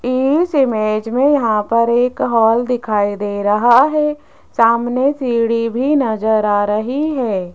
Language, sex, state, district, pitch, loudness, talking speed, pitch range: Hindi, female, Rajasthan, Jaipur, 235 Hz, -15 LUFS, 145 wpm, 215-270 Hz